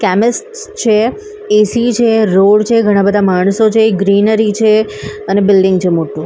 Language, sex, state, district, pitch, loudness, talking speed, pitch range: Gujarati, female, Maharashtra, Mumbai Suburban, 215 Hz, -11 LUFS, 145 wpm, 195-225 Hz